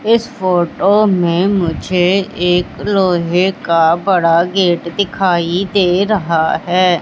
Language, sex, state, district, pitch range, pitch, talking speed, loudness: Hindi, female, Madhya Pradesh, Katni, 170-195 Hz, 180 Hz, 110 wpm, -14 LUFS